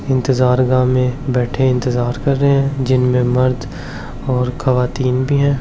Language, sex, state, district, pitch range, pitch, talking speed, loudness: Hindi, male, Delhi, New Delhi, 125-135 Hz, 130 Hz, 140 wpm, -16 LUFS